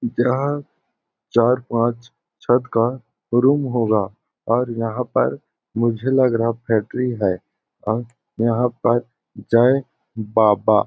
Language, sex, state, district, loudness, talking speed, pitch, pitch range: Hindi, male, Chhattisgarh, Balrampur, -20 LUFS, 110 wpm, 120 Hz, 115-125 Hz